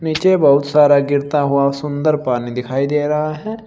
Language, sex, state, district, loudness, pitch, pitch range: Hindi, male, Uttar Pradesh, Shamli, -16 LUFS, 145 Hz, 140-155 Hz